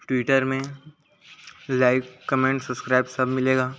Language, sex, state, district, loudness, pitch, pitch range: Hindi, male, Chhattisgarh, Korba, -23 LUFS, 130 Hz, 130-135 Hz